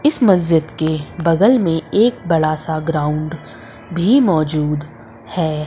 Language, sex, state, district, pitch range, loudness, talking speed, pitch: Hindi, female, Madhya Pradesh, Umaria, 150-175 Hz, -16 LUFS, 125 wpm, 160 Hz